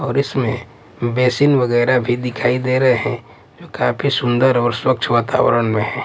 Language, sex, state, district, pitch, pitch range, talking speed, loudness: Hindi, male, Punjab, Pathankot, 125 Hz, 120-130 Hz, 170 wpm, -17 LUFS